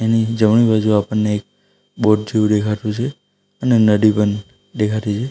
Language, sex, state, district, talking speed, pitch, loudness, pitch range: Gujarati, male, Gujarat, Valsad, 160 wpm, 110 Hz, -17 LUFS, 105-115 Hz